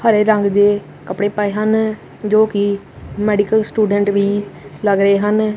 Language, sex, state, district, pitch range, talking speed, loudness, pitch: Punjabi, male, Punjab, Kapurthala, 200-215 Hz, 150 wpm, -16 LUFS, 205 Hz